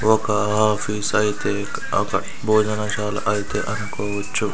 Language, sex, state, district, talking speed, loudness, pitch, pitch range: Telugu, male, Andhra Pradesh, Sri Satya Sai, 105 wpm, -22 LUFS, 105 Hz, 105-110 Hz